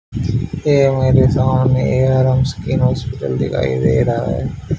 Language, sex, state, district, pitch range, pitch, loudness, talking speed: Hindi, male, Haryana, Charkhi Dadri, 130-135 Hz, 130 Hz, -16 LUFS, 115 wpm